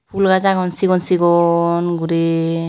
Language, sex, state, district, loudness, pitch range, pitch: Chakma, female, Tripura, Unakoti, -16 LUFS, 165-185 Hz, 170 Hz